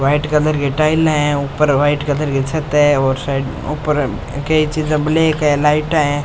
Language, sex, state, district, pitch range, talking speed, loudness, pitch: Rajasthani, male, Rajasthan, Churu, 145-155 Hz, 190 wpm, -16 LUFS, 150 Hz